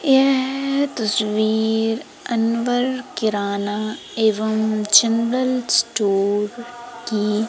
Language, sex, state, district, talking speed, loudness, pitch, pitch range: Hindi, female, Madhya Pradesh, Umaria, 65 wpm, -20 LUFS, 225 Hz, 215-245 Hz